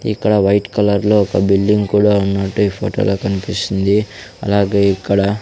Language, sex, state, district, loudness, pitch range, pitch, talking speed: Telugu, male, Andhra Pradesh, Sri Satya Sai, -15 LUFS, 100-105 Hz, 100 Hz, 155 wpm